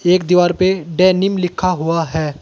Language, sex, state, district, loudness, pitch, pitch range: Hindi, male, Uttar Pradesh, Saharanpur, -15 LUFS, 180 Hz, 165-185 Hz